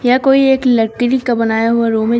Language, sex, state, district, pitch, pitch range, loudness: Hindi, female, Uttar Pradesh, Shamli, 240 Hz, 230-255 Hz, -13 LUFS